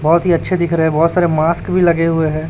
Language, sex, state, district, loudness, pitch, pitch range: Hindi, male, Chhattisgarh, Raipur, -14 LUFS, 165 Hz, 160-170 Hz